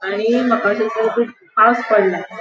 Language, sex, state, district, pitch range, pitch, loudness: Konkani, female, Goa, North and South Goa, 210-235 Hz, 225 Hz, -16 LUFS